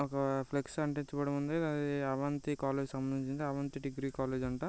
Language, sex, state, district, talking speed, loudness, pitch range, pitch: Telugu, male, Andhra Pradesh, Visakhapatnam, 165 wpm, -36 LUFS, 135-145 Hz, 140 Hz